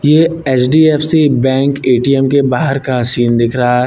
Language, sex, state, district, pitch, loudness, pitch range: Hindi, male, Uttar Pradesh, Lucknow, 135 Hz, -12 LUFS, 125-150 Hz